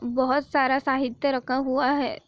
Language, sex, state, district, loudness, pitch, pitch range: Hindi, female, Karnataka, Bijapur, -24 LUFS, 265 Hz, 260-275 Hz